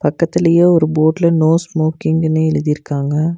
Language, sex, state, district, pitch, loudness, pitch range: Tamil, female, Tamil Nadu, Nilgiris, 160 Hz, -14 LUFS, 155-170 Hz